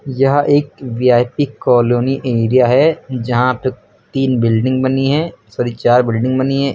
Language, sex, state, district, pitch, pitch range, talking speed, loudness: Hindi, male, Uttar Pradesh, Lucknow, 130 Hz, 120-135 Hz, 150 wpm, -15 LUFS